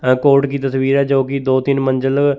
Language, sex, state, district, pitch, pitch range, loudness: Hindi, male, Chandigarh, Chandigarh, 135 Hz, 130-140 Hz, -15 LUFS